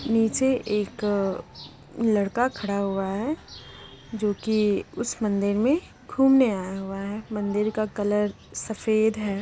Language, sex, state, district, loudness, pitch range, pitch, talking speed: Hindi, female, Bihar, Lakhisarai, -25 LUFS, 200-225 Hz, 210 Hz, 125 wpm